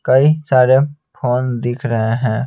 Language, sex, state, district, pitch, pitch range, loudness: Hindi, male, Bihar, Patna, 125 Hz, 120-135 Hz, -16 LUFS